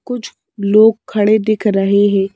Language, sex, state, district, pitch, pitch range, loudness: Hindi, female, Madhya Pradesh, Bhopal, 210 Hz, 200-220 Hz, -13 LUFS